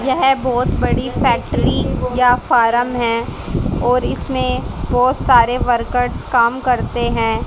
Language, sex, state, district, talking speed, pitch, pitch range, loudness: Hindi, female, Haryana, Jhajjar, 120 wpm, 245 Hz, 235-250 Hz, -16 LUFS